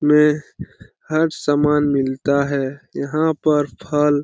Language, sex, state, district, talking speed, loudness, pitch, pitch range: Hindi, male, Bihar, Lakhisarai, 125 wpm, -19 LUFS, 150 Hz, 140-150 Hz